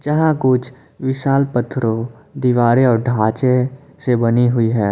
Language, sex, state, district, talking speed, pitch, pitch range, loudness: Hindi, male, Jharkhand, Palamu, 135 wpm, 125 Hz, 120-135 Hz, -17 LUFS